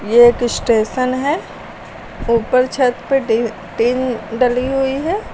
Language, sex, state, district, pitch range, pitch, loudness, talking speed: Hindi, female, Uttar Pradesh, Lucknow, 235-260 Hz, 245 Hz, -16 LUFS, 135 wpm